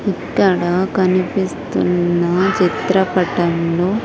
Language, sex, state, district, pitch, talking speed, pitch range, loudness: Telugu, female, Andhra Pradesh, Sri Satya Sai, 185 Hz, 45 wpm, 175-190 Hz, -16 LUFS